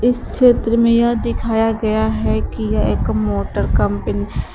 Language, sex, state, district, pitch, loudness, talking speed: Hindi, female, Uttar Pradesh, Shamli, 215 Hz, -17 LUFS, 170 wpm